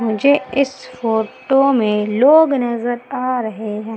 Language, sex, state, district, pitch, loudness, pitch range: Hindi, female, Madhya Pradesh, Umaria, 245 Hz, -16 LUFS, 220-270 Hz